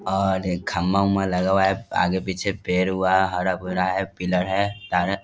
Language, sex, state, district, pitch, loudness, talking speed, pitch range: Hindi, male, Bihar, Vaishali, 95 Hz, -22 LUFS, 150 wpm, 90-95 Hz